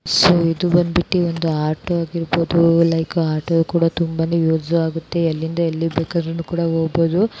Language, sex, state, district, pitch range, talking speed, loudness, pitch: Kannada, female, Karnataka, Bijapur, 165-170 Hz, 135 wpm, -18 LUFS, 165 Hz